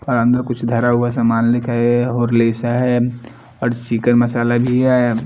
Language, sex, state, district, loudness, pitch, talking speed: Hindi, male, Bihar, Patna, -16 LUFS, 120 Hz, 180 wpm